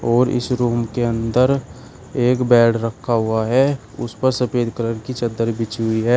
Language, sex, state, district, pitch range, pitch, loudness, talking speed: Hindi, male, Uttar Pradesh, Shamli, 115-125 Hz, 120 Hz, -19 LUFS, 185 wpm